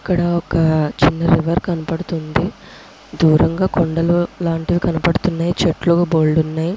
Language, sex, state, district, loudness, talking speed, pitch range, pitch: Telugu, female, Andhra Pradesh, Krishna, -17 LUFS, 105 wpm, 160-175 Hz, 170 Hz